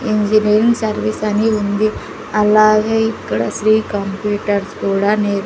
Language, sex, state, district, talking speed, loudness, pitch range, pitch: Telugu, female, Andhra Pradesh, Sri Satya Sai, 110 wpm, -16 LUFS, 205-215 Hz, 215 Hz